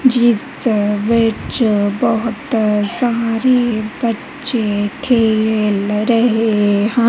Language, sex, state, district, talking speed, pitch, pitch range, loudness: Punjabi, female, Punjab, Kapurthala, 70 wpm, 225 Hz, 210-240 Hz, -16 LUFS